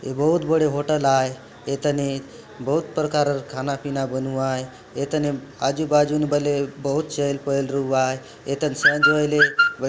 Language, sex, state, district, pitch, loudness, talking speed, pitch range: Halbi, male, Chhattisgarh, Bastar, 140 Hz, -22 LUFS, 165 wpm, 135-150 Hz